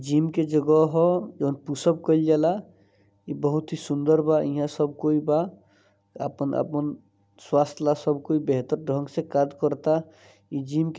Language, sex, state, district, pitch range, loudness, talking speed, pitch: Bhojpuri, male, Bihar, East Champaran, 140-155 Hz, -25 LUFS, 170 wpm, 150 Hz